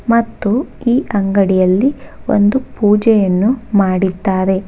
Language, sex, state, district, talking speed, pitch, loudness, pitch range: Kannada, female, Karnataka, Bangalore, 75 wpm, 205 Hz, -14 LUFS, 190-230 Hz